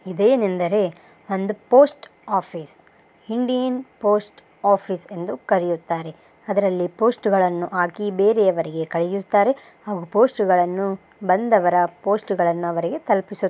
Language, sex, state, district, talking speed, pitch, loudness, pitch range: Kannada, female, Karnataka, Bellary, 100 wpm, 195 Hz, -21 LUFS, 175-210 Hz